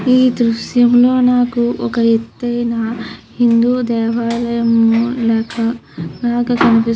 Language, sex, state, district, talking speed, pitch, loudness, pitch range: Telugu, female, Andhra Pradesh, Krishna, 95 wpm, 235 Hz, -15 LUFS, 230-245 Hz